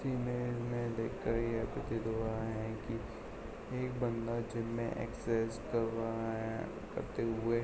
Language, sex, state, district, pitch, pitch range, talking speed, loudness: Hindi, male, Uttar Pradesh, Jalaun, 115 Hz, 115-120 Hz, 150 wpm, -38 LUFS